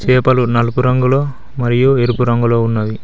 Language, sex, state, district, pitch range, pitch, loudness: Telugu, male, Telangana, Mahabubabad, 120-130 Hz, 125 Hz, -14 LUFS